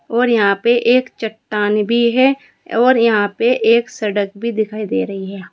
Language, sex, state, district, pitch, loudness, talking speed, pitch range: Hindi, female, Uttar Pradesh, Saharanpur, 225 Hz, -16 LUFS, 185 wpm, 205-240 Hz